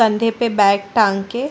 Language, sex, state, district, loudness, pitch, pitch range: Hindi, female, Chhattisgarh, Sarguja, -17 LUFS, 220 Hz, 200-230 Hz